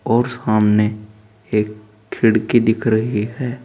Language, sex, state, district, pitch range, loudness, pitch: Hindi, male, Uttar Pradesh, Saharanpur, 105-120 Hz, -18 LUFS, 110 Hz